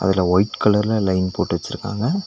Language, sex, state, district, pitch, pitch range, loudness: Tamil, male, Tamil Nadu, Nilgiris, 105 Hz, 95-115 Hz, -20 LUFS